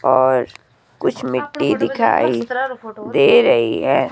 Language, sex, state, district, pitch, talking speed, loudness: Hindi, female, Himachal Pradesh, Shimla, 220 Hz, 100 wpm, -17 LUFS